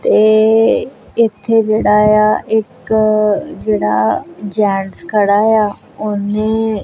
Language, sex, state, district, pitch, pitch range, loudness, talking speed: Punjabi, female, Punjab, Kapurthala, 215 Hz, 205-220 Hz, -14 LUFS, 90 wpm